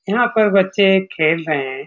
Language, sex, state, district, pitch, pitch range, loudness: Hindi, male, Bihar, Saran, 190 Hz, 155-200 Hz, -16 LUFS